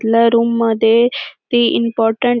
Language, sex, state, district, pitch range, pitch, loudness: Marathi, female, Maharashtra, Dhule, 225-240 Hz, 230 Hz, -14 LUFS